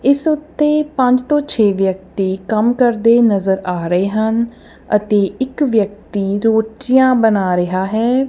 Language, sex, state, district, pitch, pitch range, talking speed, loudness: Punjabi, female, Punjab, Kapurthala, 220 Hz, 195-260 Hz, 135 wpm, -15 LUFS